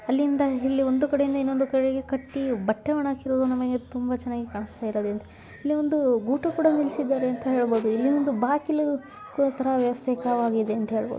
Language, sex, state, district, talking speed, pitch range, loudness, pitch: Kannada, female, Karnataka, Chamarajanagar, 150 wpm, 245-280 Hz, -25 LUFS, 265 Hz